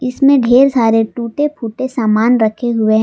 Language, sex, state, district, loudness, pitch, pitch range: Hindi, female, Jharkhand, Palamu, -13 LUFS, 235 Hz, 225-260 Hz